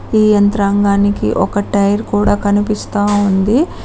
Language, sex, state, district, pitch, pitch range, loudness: Telugu, female, Telangana, Mahabubabad, 205 Hz, 200-210 Hz, -14 LUFS